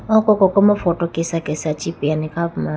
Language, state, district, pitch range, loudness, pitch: Idu Mishmi, Arunachal Pradesh, Lower Dibang Valley, 155-190 Hz, -18 LUFS, 165 Hz